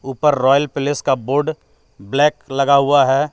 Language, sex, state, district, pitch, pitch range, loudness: Hindi, male, Jharkhand, Deoghar, 140 Hz, 135-145 Hz, -16 LUFS